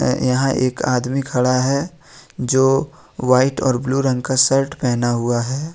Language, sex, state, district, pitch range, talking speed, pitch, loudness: Hindi, male, Jharkhand, Ranchi, 125-135 Hz, 155 wpm, 130 Hz, -18 LUFS